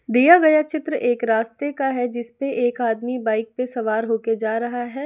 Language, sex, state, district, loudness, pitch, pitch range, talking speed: Hindi, female, Bihar, West Champaran, -20 LUFS, 245 Hz, 225-270 Hz, 225 wpm